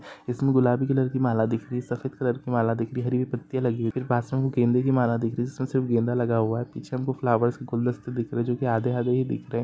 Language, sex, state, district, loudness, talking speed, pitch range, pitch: Hindi, male, Maharashtra, Dhule, -25 LUFS, 325 wpm, 120-130 Hz, 125 Hz